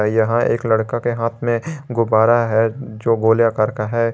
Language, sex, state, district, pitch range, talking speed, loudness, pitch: Hindi, male, Jharkhand, Garhwa, 110-120 Hz, 190 wpm, -18 LUFS, 115 Hz